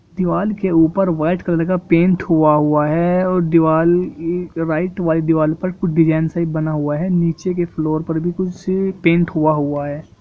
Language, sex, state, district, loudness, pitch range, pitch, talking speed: Hindi, male, Jharkhand, Jamtara, -17 LUFS, 160-180 Hz, 170 Hz, 195 wpm